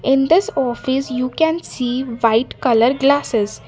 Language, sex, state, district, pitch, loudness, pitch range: English, female, Karnataka, Bangalore, 260 Hz, -17 LUFS, 240-275 Hz